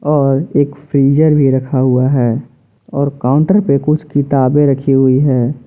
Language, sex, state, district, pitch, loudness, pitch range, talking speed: Hindi, male, Jharkhand, Ranchi, 140 Hz, -13 LUFS, 130-145 Hz, 160 wpm